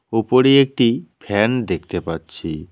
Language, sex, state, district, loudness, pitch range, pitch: Bengali, male, West Bengal, Cooch Behar, -18 LUFS, 85-125 Hz, 110 Hz